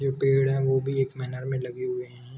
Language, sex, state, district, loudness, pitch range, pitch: Hindi, male, Jharkhand, Sahebganj, -26 LUFS, 125-135 Hz, 130 Hz